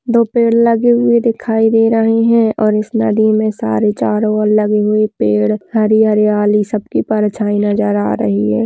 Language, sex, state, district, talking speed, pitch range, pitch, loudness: Hindi, female, Rajasthan, Nagaur, 185 wpm, 210-225 Hz, 215 Hz, -13 LUFS